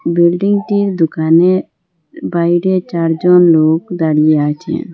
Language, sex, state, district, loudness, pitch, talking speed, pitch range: Bengali, female, Assam, Hailakandi, -13 LUFS, 170 Hz, 95 wpm, 160-185 Hz